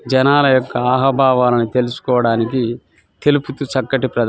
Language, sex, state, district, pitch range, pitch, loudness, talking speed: Telugu, male, Telangana, Nalgonda, 120-135 Hz, 130 Hz, -16 LUFS, 110 wpm